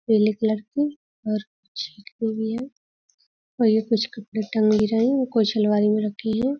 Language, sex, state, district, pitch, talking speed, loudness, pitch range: Hindi, female, Uttar Pradesh, Budaun, 220 Hz, 180 wpm, -23 LUFS, 215-230 Hz